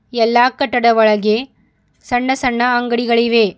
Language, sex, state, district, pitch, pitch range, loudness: Kannada, female, Karnataka, Bidar, 240 Hz, 225-245 Hz, -15 LUFS